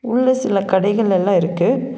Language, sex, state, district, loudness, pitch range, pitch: Tamil, female, Tamil Nadu, Nilgiris, -17 LUFS, 190-250 Hz, 205 Hz